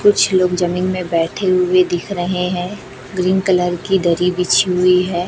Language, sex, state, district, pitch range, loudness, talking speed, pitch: Hindi, female, Chhattisgarh, Raipur, 180-185 Hz, -16 LUFS, 180 wpm, 180 Hz